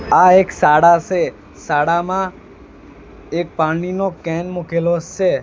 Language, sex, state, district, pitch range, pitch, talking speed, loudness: Gujarati, male, Gujarat, Valsad, 165-185 Hz, 170 Hz, 110 wpm, -16 LUFS